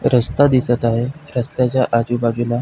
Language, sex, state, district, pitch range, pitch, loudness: Marathi, male, Maharashtra, Pune, 120-130 Hz, 120 Hz, -17 LUFS